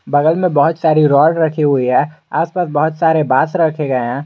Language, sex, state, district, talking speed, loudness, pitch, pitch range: Hindi, male, Jharkhand, Garhwa, 210 wpm, -14 LUFS, 155 Hz, 145-165 Hz